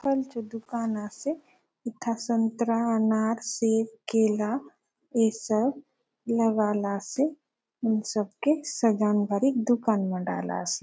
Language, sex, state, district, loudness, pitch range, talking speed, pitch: Halbi, female, Chhattisgarh, Bastar, -27 LUFS, 215-240 Hz, 110 wpm, 225 Hz